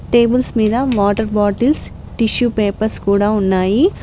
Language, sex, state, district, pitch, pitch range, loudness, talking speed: Telugu, female, Telangana, Mahabubabad, 220 Hz, 205-240 Hz, -15 LUFS, 120 wpm